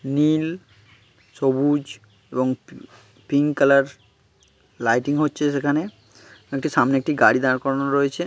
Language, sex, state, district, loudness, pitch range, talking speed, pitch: Bengali, male, West Bengal, Kolkata, -21 LUFS, 110-145 Hz, 115 wpm, 135 Hz